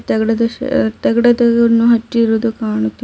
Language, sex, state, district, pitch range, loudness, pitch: Kannada, female, Karnataka, Bidar, 220-235 Hz, -14 LUFS, 230 Hz